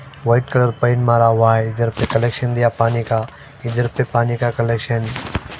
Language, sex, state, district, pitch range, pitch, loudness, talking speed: Hindi, female, Punjab, Fazilka, 115-120 Hz, 120 Hz, -18 LUFS, 195 wpm